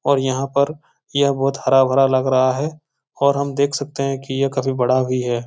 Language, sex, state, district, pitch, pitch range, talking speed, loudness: Hindi, male, Bihar, Supaul, 135 Hz, 130-140 Hz, 230 wpm, -19 LUFS